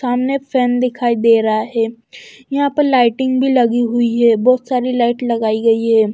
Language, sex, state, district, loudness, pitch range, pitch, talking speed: Hindi, female, Bihar, West Champaran, -15 LUFS, 230-255 Hz, 240 Hz, 185 wpm